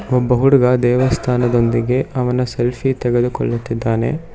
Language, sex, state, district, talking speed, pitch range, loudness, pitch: Kannada, male, Karnataka, Bangalore, 80 wpm, 120-130 Hz, -16 LUFS, 125 Hz